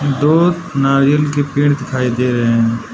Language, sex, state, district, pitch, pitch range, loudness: Hindi, male, Arunachal Pradesh, Lower Dibang Valley, 140 Hz, 125-145 Hz, -14 LUFS